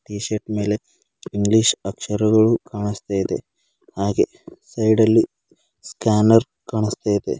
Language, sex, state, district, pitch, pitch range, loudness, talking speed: Kannada, male, Karnataka, Bidar, 105 Hz, 105-110 Hz, -20 LUFS, 105 wpm